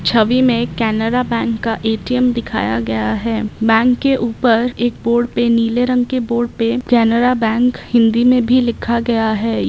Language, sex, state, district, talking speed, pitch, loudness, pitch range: Hindi, female, Bihar, Bhagalpur, 180 wpm, 235 Hz, -15 LUFS, 225-245 Hz